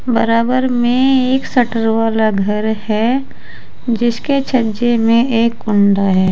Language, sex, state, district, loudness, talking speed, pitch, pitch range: Hindi, female, Uttar Pradesh, Saharanpur, -14 LUFS, 125 wpm, 230 Hz, 220-250 Hz